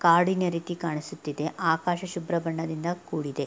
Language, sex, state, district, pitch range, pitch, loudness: Kannada, female, Karnataka, Mysore, 155-175 Hz, 170 Hz, -28 LUFS